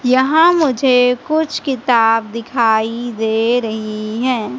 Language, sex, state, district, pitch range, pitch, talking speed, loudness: Hindi, female, Madhya Pradesh, Katni, 225-260 Hz, 240 Hz, 105 wpm, -15 LUFS